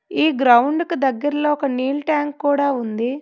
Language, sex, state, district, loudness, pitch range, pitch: Telugu, female, Telangana, Hyderabad, -19 LUFS, 265-295 Hz, 285 Hz